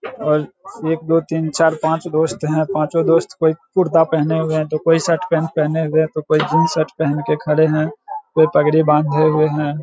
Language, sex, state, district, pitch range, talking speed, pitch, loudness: Hindi, male, Bihar, Saharsa, 155-160 Hz, 220 wpm, 160 Hz, -17 LUFS